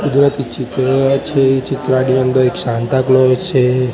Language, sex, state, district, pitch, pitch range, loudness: Gujarati, male, Gujarat, Gandhinagar, 130 Hz, 130-135 Hz, -14 LUFS